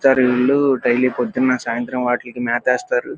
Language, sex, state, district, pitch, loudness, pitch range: Telugu, male, Andhra Pradesh, Krishna, 125 Hz, -18 LUFS, 125-135 Hz